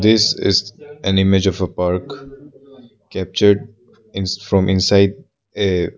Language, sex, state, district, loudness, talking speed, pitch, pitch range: English, male, Arunachal Pradesh, Lower Dibang Valley, -17 LUFS, 130 wpm, 100 Hz, 95-120 Hz